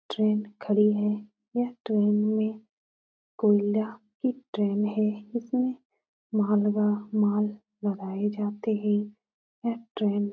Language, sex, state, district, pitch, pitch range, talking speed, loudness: Hindi, female, Uttar Pradesh, Etah, 210 Hz, 210-220 Hz, 105 wpm, -27 LUFS